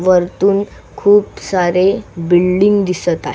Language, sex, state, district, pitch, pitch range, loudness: Marathi, female, Maharashtra, Solapur, 185 Hz, 175-200 Hz, -14 LUFS